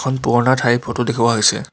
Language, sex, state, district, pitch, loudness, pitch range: Assamese, male, Assam, Kamrup Metropolitan, 120 Hz, -16 LUFS, 120-130 Hz